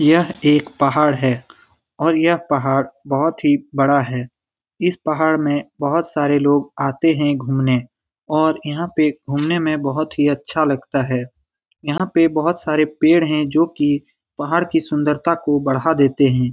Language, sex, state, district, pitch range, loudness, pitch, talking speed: Hindi, male, Bihar, Lakhisarai, 140-160 Hz, -18 LUFS, 150 Hz, 165 wpm